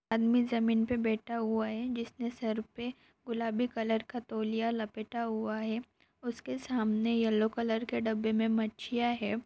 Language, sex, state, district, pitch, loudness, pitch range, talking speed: Hindi, female, Maharashtra, Pune, 225 Hz, -33 LUFS, 220-240 Hz, 160 wpm